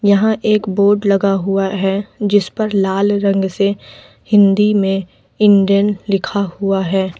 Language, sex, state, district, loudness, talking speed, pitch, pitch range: Hindi, female, Uttar Pradesh, Lalitpur, -15 LUFS, 135 wpm, 200 Hz, 195-205 Hz